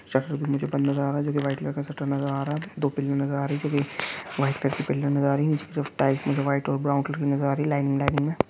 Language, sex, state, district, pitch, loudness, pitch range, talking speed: Hindi, male, Chhattisgarh, Korba, 140 Hz, -26 LUFS, 140-145 Hz, 355 wpm